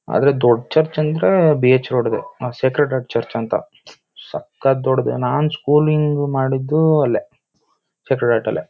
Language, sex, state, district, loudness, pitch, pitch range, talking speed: Kannada, male, Karnataka, Shimoga, -17 LUFS, 135 Hz, 125-150 Hz, 150 wpm